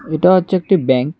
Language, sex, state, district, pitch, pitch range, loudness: Bengali, male, Tripura, West Tripura, 175 Hz, 150-185 Hz, -14 LUFS